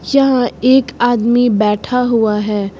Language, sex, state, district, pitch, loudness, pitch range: Hindi, female, Uttar Pradesh, Lucknow, 240 Hz, -13 LUFS, 210-250 Hz